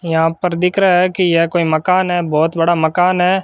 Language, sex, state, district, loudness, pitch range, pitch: Hindi, male, Rajasthan, Bikaner, -14 LUFS, 165-180 Hz, 175 Hz